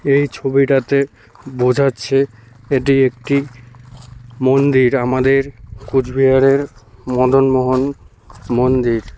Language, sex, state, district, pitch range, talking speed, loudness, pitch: Bengali, male, West Bengal, Cooch Behar, 120-135 Hz, 65 wpm, -15 LUFS, 130 Hz